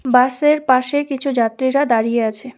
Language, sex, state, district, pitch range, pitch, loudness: Bengali, female, West Bengal, Alipurduar, 235-275 Hz, 255 Hz, -16 LUFS